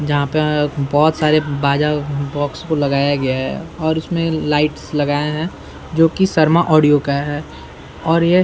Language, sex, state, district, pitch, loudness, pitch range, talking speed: Hindi, male, Bihar, Saran, 150 Hz, -17 LUFS, 145-160 Hz, 155 wpm